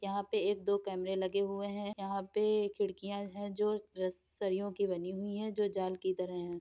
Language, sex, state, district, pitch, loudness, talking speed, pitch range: Hindi, female, Uttar Pradesh, Hamirpur, 200 Hz, -36 LUFS, 210 wpm, 190-205 Hz